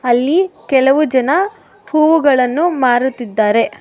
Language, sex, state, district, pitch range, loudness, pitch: Kannada, female, Karnataka, Bangalore, 250-320 Hz, -14 LUFS, 270 Hz